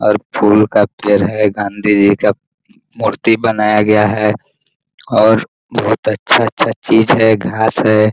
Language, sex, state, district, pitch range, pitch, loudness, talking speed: Hindi, male, Bihar, Muzaffarpur, 105-110 Hz, 105 Hz, -13 LUFS, 150 wpm